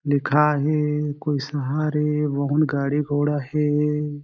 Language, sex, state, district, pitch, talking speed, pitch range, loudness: Chhattisgarhi, male, Chhattisgarh, Jashpur, 150 Hz, 115 wpm, 145-150 Hz, -22 LUFS